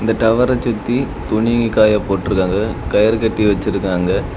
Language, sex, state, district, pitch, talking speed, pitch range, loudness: Tamil, male, Tamil Nadu, Kanyakumari, 110 Hz, 125 wpm, 100-115 Hz, -16 LUFS